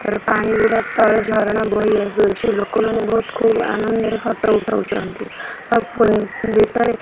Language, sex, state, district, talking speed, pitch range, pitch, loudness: Odia, female, Odisha, Khordha, 145 wpm, 215-225 Hz, 220 Hz, -17 LUFS